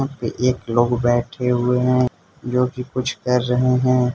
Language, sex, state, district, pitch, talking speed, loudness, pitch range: Hindi, male, Arunachal Pradesh, Lower Dibang Valley, 125 Hz, 160 wpm, -20 LUFS, 120-125 Hz